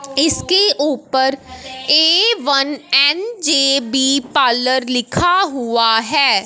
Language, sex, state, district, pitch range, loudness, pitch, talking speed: Hindi, female, Punjab, Fazilka, 260-315 Hz, -14 LUFS, 275 Hz, 85 wpm